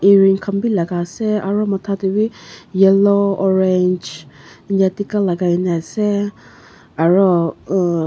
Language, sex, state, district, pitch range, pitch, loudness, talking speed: Nagamese, female, Nagaland, Kohima, 175-200 Hz, 195 Hz, -17 LUFS, 125 wpm